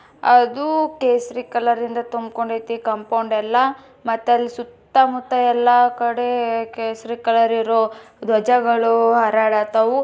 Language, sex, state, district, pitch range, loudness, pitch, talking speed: Kannada, female, Karnataka, Bijapur, 230-245 Hz, -18 LUFS, 235 Hz, 115 wpm